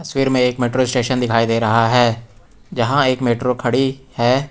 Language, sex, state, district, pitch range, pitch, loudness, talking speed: Hindi, male, Uttar Pradesh, Lucknow, 115-130 Hz, 125 Hz, -17 LUFS, 185 wpm